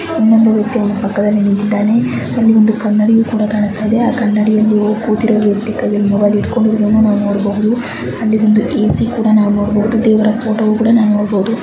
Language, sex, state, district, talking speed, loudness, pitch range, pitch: Kannada, female, Karnataka, Bijapur, 130 wpm, -13 LUFS, 210-225 Hz, 215 Hz